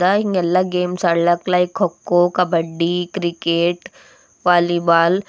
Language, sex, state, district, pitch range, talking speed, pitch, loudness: Kannada, female, Karnataka, Bidar, 170-180 Hz, 115 wpm, 175 Hz, -18 LUFS